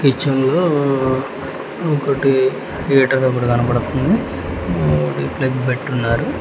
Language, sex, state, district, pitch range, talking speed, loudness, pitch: Telugu, male, Telangana, Hyderabad, 120-135 Hz, 85 wpm, -18 LUFS, 130 Hz